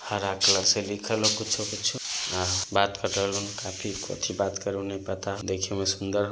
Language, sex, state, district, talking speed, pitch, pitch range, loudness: Magahi, male, Bihar, Samastipur, 210 wpm, 100 Hz, 95-105 Hz, -27 LUFS